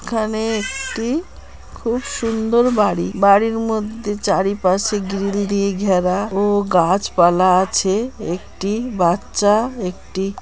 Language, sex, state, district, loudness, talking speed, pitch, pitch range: Bengali, female, West Bengal, Kolkata, -18 LUFS, 100 wpm, 205 Hz, 190-225 Hz